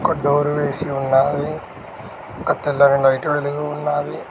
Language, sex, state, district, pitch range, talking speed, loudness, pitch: Telugu, male, Telangana, Mahabubabad, 140-150 Hz, 110 wpm, -19 LUFS, 145 Hz